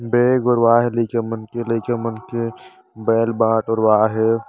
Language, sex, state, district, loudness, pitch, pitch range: Chhattisgarhi, male, Chhattisgarh, Bastar, -18 LUFS, 115 Hz, 115-120 Hz